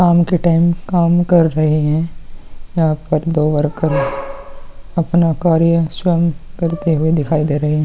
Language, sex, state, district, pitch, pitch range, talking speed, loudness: Hindi, male, Bihar, Vaishali, 160 Hz, 150-170 Hz, 155 wpm, -15 LUFS